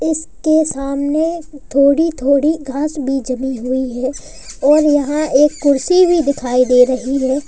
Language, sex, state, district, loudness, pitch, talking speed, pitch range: Hindi, male, Uttar Pradesh, Lalitpur, -15 LUFS, 280 Hz, 145 wpm, 265-310 Hz